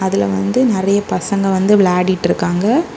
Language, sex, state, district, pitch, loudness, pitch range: Tamil, female, Tamil Nadu, Kanyakumari, 190 Hz, -15 LUFS, 180-205 Hz